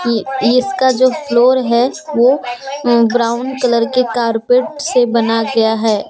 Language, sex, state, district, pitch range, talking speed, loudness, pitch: Hindi, female, Jharkhand, Deoghar, 230-255 Hz, 145 wpm, -14 LUFS, 245 Hz